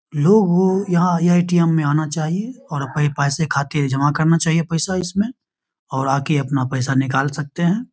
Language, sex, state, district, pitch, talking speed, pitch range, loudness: Hindi, male, Bihar, Begusarai, 160 Hz, 165 wpm, 140-175 Hz, -18 LUFS